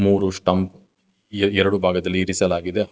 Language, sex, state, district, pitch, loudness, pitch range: Kannada, male, Karnataka, Bangalore, 95 Hz, -20 LUFS, 90-100 Hz